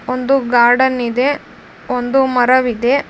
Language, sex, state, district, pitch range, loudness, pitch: Kannada, female, Karnataka, Dharwad, 245-270 Hz, -14 LUFS, 255 Hz